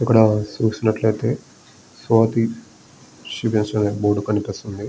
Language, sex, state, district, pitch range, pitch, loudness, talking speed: Telugu, male, Andhra Pradesh, Visakhapatnam, 105-115 Hz, 110 Hz, -20 LUFS, 85 wpm